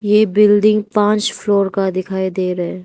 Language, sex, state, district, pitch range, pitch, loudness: Hindi, female, Arunachal Pradesh, Lower Dibang Valley, 190-210 Hz, 205 Hz, -15 LUFS